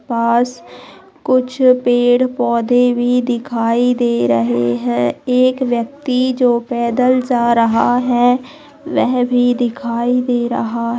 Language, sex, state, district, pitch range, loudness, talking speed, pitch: Hindi, female, Bihar, Jamui, 235-250 Hz, -15 LUFS, 110 wpm, 245 Hz